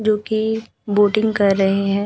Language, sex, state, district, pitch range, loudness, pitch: Hindi, female, Bihar, Vaishali, 200-220 Hz, -18 LUFS, 210 Hz